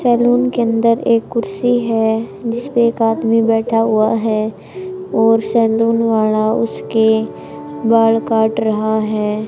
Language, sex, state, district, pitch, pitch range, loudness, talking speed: Hindi, male, Haryana, Charkhi Dadri, 225 Hz, 220-230 Hz, -15 LUFS, 125 wpm